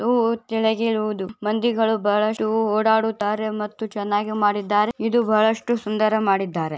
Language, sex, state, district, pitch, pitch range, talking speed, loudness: Kannada, female, Karnataka, Bijapur, 215 Hz, 210-225 Hz, 105 wpm, -21 LUFS